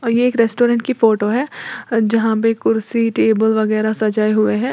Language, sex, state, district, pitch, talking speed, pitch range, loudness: Hindi, female, Uttar Pradesh, Lalitpur, 225 Hz, 165 wpm, 215-235 Hz, -16 LUFS